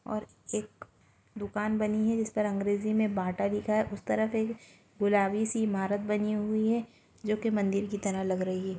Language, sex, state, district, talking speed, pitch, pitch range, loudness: Hindi, female, Chhattisgarh, Rajnandgaon, 200 wpm, 210 Hz, 200-215 Hz, -30 LUFS